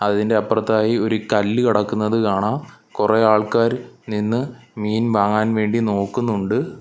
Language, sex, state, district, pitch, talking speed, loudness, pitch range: Malayalam, male, Kerala, Kollam, 110 Hz, 115 wpm, -19 LUFS, 105-115 Hz